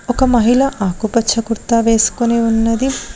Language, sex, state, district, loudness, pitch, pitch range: Telugu, female, Telangana, Mahabubabad, -14 LUFS, 230 Hz, 225-245 Hz